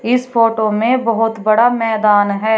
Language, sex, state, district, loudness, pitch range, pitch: Hindi, female, Uttar Pradesh, Shamli, -14 LUFS, 215-235 Hz, 225 Hz